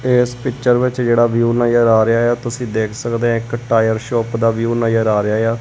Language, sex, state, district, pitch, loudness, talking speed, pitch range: Punjabi, male, Punjab, Kapurthala, 115 Hz, -16 LUFS, 255 wpm, 115-120 Hz